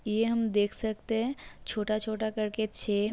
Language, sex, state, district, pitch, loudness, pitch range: Hindi, female, Uttar Pradesh, Jalaun, 220 Hz, -31 LUFS, 215-225 Hz